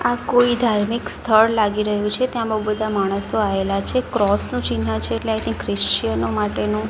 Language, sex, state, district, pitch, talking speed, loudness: Gujarati, female, Gujarat, Gandhinagar, 205 Hz, 190 wpm, -20 LUFS